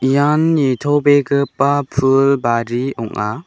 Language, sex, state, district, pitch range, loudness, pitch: Garo, male, Meghalaya, West Garo Hills, 125-145 Hz, -15 LUFS, 140 Hz